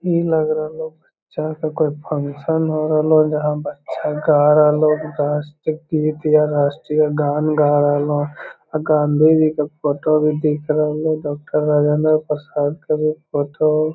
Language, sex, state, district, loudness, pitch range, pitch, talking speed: Magahi, male, Bihar, Lakhisarai, -18 LUFS, 150-155 Hz, 155 Hz, 150 wpm